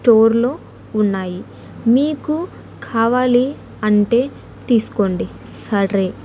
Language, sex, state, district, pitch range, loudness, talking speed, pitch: Telugu, female, Andhra Pradesh, Annamaya, 205-250 Hz, -18 LUFS, 65 wpm, 230 Hz